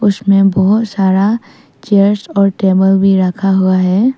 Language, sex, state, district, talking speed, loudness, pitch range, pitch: Hindi, female, Arunachal Pradesh, Papum Pare, 145 wpm, -12 LUFS, 190-205 Hz, 195 Hz